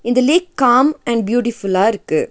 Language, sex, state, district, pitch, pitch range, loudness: Tamil, female, Tamil Nadu, Nilgiris, 240 Hz, 220-265 Hz, -15 LUFS